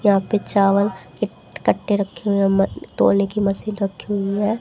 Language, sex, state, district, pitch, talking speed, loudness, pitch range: Hindi, female, Haryana, Charkhi Dadri, 200 Hz, 180 wpm, -20 LUFS, 195-205 Hz